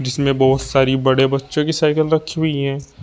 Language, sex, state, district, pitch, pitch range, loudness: Hindi, male, Uttar Pradesh, Shamli, 140 Hz, 135-155 Hz, -17 LUFS